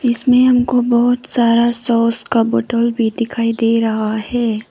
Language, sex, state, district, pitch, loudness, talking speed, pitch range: Hindi, female, Arunachal Pradesh, Papum Pare, 235 Hz, -15 LUFS, 155 wpm, 230-245 Hz